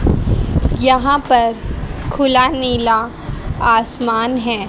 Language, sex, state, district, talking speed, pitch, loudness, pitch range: Hindi, female, Haryana, Jhajjar, 75 wpm, 235 Hz, -15 LUFS, 220-255 Hz